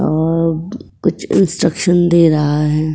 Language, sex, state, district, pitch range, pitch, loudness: Hindi, female, Uttar Pradesh, Etah, 155-175 Hz, 165 Hz, -14 LUFS